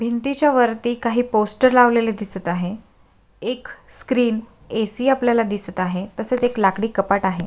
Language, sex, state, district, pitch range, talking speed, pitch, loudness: Marathi, female, Maharashtra, Sindhudurg, 200-245 Hz, 135 wpm, 225 Hz, -20 LUFS